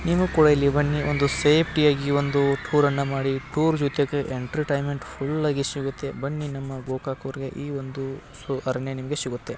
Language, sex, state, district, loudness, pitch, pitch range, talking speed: Kannada, male, Karnataka, Belgaum, -24 LUFS, 140 Hz, 135-145 Hz, 165 wpm